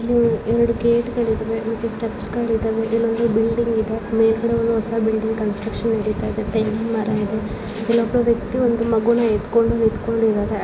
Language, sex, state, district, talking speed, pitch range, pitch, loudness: Kannada, female, Karnataka, Belgaum, 170 wpm, 220-230 Hz, 225 Hz, -20 LUFS